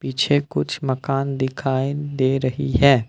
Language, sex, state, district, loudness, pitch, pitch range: Hindi, male, Assam, Kamrup Metropolitan, -21 LUFS, 135 Hz, 130-140 Hz